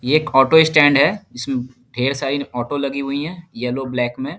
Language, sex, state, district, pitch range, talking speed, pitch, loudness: Hindi, male, Bihar, Darbhanga, 125-145 Hz, 205 wpm, 135 Hz, -18 LUFS